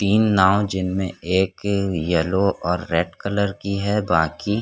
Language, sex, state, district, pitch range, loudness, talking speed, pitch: Hindi, male, Chhattisgarh, Korba, 90-100 Hz, -21 LUFS, 145 wpm, 95 Hz